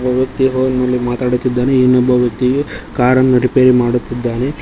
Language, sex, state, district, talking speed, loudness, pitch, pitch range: Kannada, male, Karnataka, Koppal, 115 wpm, -14 LUFS, 125 Hz, 125-130 Hz